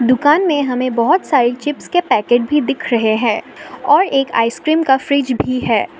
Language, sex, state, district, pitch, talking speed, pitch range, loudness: Hindi, female, Assam, Sonitpur, 255 Hz, 190 wpm, 235-290 Hz, -15 LUFS